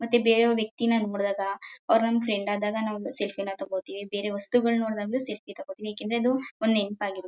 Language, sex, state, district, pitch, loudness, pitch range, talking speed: Kannada, female, Karnataka, Mysore, 215 Hz, -27 LUFS, 200-230 Hz, 195 wpm